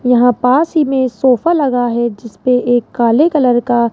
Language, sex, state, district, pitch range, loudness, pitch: Hindi, female, Rajasthan, Jaipur, 240-270 Hz, -13 LUFS, 250 Hz